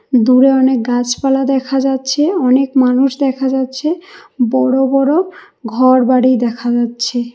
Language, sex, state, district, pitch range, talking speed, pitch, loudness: Bengali, female, Karnataka, Bangalore, 250-275 Hz, 115 wpm, 265 Hz, -13 LUFS